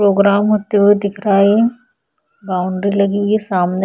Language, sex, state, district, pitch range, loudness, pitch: Hindi, female, Uttar Pradesh, Budaun, 200-215 Hz, -15 LUFS, 200 Hz